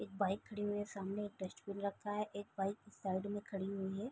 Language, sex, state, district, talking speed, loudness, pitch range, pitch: Hindi, female, Bihar, East Champaran, 245 wpm, -42 LUFS, 195-205 Hz, 200 Hz